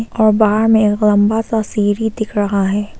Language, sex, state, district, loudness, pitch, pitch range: Hindi, female, Arunachal Pradesh, Papum Pare, -15 LUFS, 215 Hz, 205-220 Hz